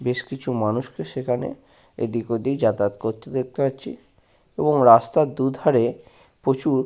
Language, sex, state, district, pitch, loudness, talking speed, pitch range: Bengali, male, West Bengal, Paschim Medinipur, 125 Hz, -22 LUFS, 125 wpm, 115-135 Hz